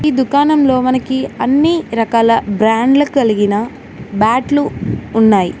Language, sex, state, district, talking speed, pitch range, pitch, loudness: Telugu, female, Telangana, Mahabubabad, 95 wpm, 220-280 Hz, 255 Hz, -13 LUFS